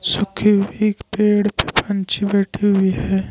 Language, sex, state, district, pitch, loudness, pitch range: Hindi, male, Jharkhand, Ranchi, 205 Hz, -18 LUFS, 195-210 Hz